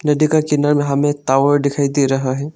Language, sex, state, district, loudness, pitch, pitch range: Hindi, male, Arunachal Pradesh, Lower Dibang Valley, -16 LUFS, 145 Hz, 140-150 Hz